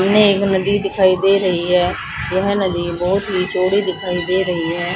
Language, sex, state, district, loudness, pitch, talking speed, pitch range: Hindi, female, Haryana, Charkhi Dadri, -17 LUFS, 185 Hz, 195 wpm, 180-195 Hz